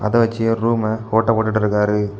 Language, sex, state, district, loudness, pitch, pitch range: Tamil, male, Tamil Nadu, Kanyakumari, -18 LUFS, 110 Hz, 105-115 Hz